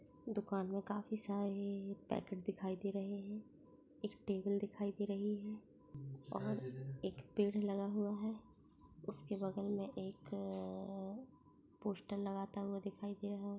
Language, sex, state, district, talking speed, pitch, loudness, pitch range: Hindi, female, Bihar, East Champaran, 145 wpm, 200 Hz, -43 LUFS, 195-205 Hz